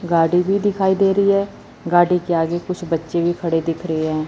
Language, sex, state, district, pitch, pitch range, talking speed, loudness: Hindi, female, Chandigarh, Chandigarh, 175 Hz, 165-190 Hz, 225 wpm, -18 LUFS